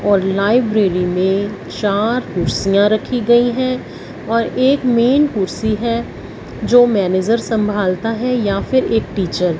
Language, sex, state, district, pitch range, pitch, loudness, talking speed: Hindi, female, Punjab, Fazilka, 195-245 Hz, 220 Hz, -16 LUFS, 140 wpm